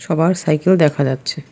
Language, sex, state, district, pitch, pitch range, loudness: Bengali, female, West Bengal, Alipurduar, 155 Hz, 145-165 Hz, -16 LUFS